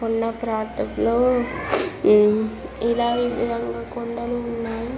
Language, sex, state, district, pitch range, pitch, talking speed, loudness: Telugu, female, Andhra Pradesh, Visakhapatnam, 220-240 Hz, 235 Hz, 85 wpm, -22 LUFS